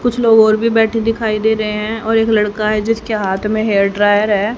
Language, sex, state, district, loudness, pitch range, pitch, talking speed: Hindi, female, Haryana, Jhajjar, -14 LUFS, 210-225 Hz, 215 Hz, 250 wpm